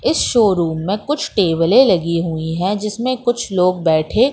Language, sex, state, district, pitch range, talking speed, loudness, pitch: Hindi, female, Madhya Pradesh, Katni, 170-240 Hz, 165 wpm, -16 LUFS, 195 Hz